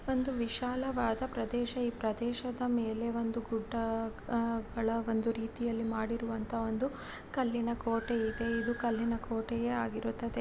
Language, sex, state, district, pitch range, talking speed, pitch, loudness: Kannada, female, Karnataka, Chamarajanagar, 225-240 Hz, 120 wpm, 230 Hz, -34 LUFS